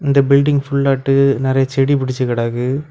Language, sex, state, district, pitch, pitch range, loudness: Tamil, male, Tamil Nadu, Kanyakumari, 135 Hz, 130-140 Hz, -15 LUFS